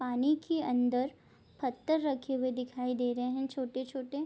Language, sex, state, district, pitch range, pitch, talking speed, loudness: Hindi, female, Bihar, Bhagalpur, 250-280 Hz, 260 Hz, 155 wpm, -33 LUFS